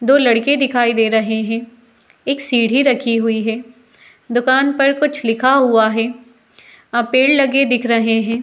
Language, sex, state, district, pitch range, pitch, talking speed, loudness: Hindi, female, Uttar Pradesh, Jalaun, 225-270 Hz, 240 Hz, 155 wpm, -15 LUFS